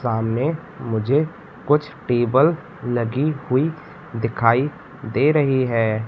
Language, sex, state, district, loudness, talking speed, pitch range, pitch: Hindi, male, Madhya Pradesh, Katni, -21 LUFS, 100 wpm, 115-150 Hz, 130 Hz